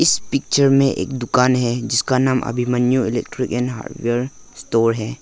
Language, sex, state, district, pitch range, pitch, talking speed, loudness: Hindi, male, Arunachal Pradesh, Lower Dibang Valley, 120-130 Hz, 125 Hz, 170 wpm, -18 LUFS